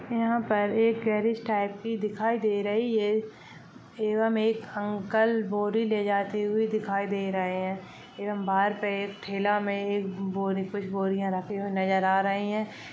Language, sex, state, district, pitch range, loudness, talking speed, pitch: Hindi, female, Chhattisgarh, Rajnandgaon, 200-220 Hz, -28 LUFS, 170 wpm, 205 Hz